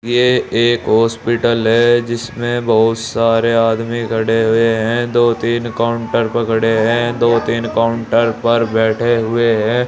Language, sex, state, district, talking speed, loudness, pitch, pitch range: Hindi, male, Uttar Pradesh, Saharanpur, 140 wpm, -15 LUFS, 115 Hz, 115-120 Hz